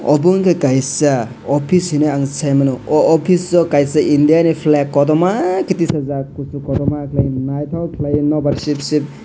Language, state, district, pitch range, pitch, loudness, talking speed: Kokborok, Tripura, West Tripura, 140-160 Hz, 145 Hz, -15 LUFS, 155 wpm